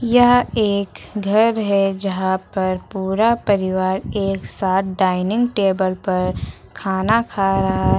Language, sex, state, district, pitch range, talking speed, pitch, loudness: Hindi, female, Uttar Pradesh, Lucknow, 190-210 Hz, 120 wpm, 195 Hz, -19 LUFS